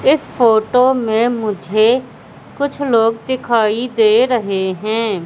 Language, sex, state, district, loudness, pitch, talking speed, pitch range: Hindi, female, Madhya Pradesh, Katni, -15 LUFS, 230 Hz, 115 wpm, 215-250 Hz